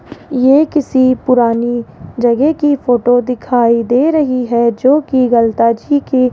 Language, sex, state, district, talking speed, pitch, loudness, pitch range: Hindi, female, Rajasthan, Jaipur, 150 wpm, 250 Hz, -12 LUFS, 235-280 Hz